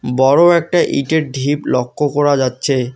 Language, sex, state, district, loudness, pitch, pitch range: Bengali, male, West Bengal, Alipurduar, -15 LUFS, 140 Hz, 130-150 Hz